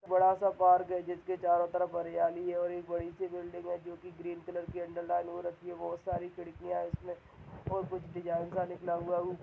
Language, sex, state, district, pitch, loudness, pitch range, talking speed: Hindi, male, Uttar Pradesh, Jyotiba Phule Nagar, 175 Hz, -34 LUFS, 175-180 Hz, 235 wpm